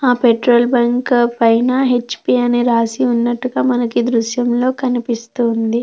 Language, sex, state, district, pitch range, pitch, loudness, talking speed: Telugu, female, Andhra Pradesh, Krishna, 235-250 Hz, 240 Hz, -15 LUFS, 125 wpm